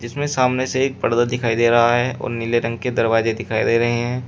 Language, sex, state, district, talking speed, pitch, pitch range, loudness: Hindi, male, Uttar Pradesh, Shamli, 250 wpm, 120 Hz, 115-125 Hz, -19 LUFS